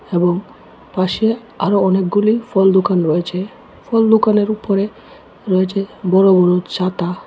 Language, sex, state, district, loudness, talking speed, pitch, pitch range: Bengali, male, Tripura, West Tripura, -16 LUFS, 115 wpm, 195 Hz, 185-215 Hz